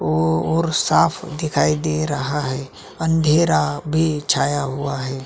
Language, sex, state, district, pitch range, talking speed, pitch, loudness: Hindi, male, Chhattisgarh, Sukma, 135-160 Hz, 135 wpm, 150 Hz, -19 LUFS